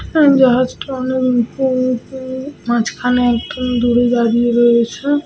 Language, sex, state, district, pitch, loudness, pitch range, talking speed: Bengali, female, Jharkhand, Sahebganj, 250 Hz, -15 LUFS, 240-260 Hz, 80 wpm